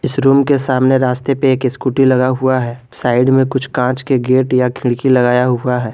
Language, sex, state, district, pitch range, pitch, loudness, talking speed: Hindi, male, Jharkhand, Garhwa, 125-135 Hz, 130 Hz, -14 LUFS, 220 wpm